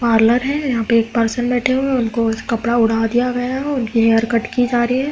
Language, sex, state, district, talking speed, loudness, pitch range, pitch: Hindi, female, Uttar Pradesh, Hamirpur, 270 wpm, -17 LUFS, 230-250 Hz, 240 Hz